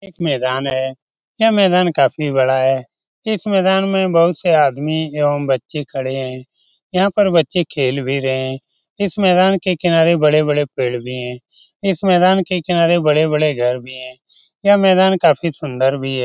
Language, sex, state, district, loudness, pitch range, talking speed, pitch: Hindi, male, Bihar, Lakhisarai, -16 LUFS, 130-185 Hz, 175 wpm, 155 Hz